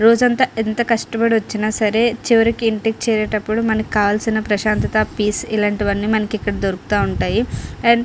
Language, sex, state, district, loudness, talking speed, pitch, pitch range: Telugu, female, Andhra Pradesh, Srikakulam, -18 LUFS, 125 wpm, 220 Hz, 215-230 Hz